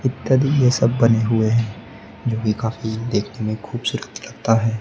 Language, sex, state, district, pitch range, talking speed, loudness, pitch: Hindi, male, Maharashtra, Gondia, 110-120 Hz, 175 wpm, -20 LUFS, 115 Hz